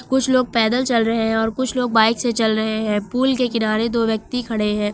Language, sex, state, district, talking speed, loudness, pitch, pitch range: Hindi, female, Uttar Pradesh, Lucknow, 255 wpm, -19 LUFS, 230 Hz, 220-250 Hz